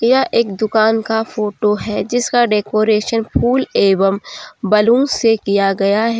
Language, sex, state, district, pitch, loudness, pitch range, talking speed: Hindi, female, Jharkhand, Deoghar, 220 Hz, -15 LUFS, 210-235 Hz, 145 wpm